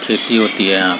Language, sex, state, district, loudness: Hindi, male, Chhattisgarh, Sarguja, -13 LUFS